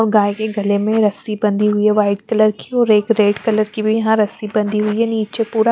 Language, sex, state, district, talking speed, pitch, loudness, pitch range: Hindi, female, Chandigarh, Chandigarh, 275 wpm, 215 Hz, -16 LUFS, 210-220 Hz